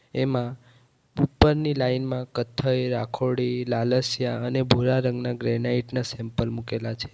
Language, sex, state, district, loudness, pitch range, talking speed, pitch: Gujarati, male, Gujarat, Valsad, -25 LUFS, 120-130 Hz, 125 wpm, 125 Hz